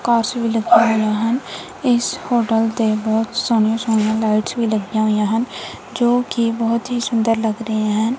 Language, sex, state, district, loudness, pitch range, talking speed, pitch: Punjabi, female, Punjab, Kapurthala, -18 LUFS, 220-235 Hz, 175 wpm, 225 Hz